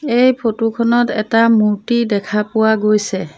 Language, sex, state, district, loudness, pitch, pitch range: Assamese, female, Assam, Sonitpur, -15 LUFS, 225 Hz, 210-235 Hz